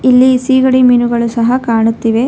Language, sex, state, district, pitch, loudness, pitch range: Kannada, female, Karnataka, Bangalore, 245 Hz, -10 LUFS, 230-255 Hz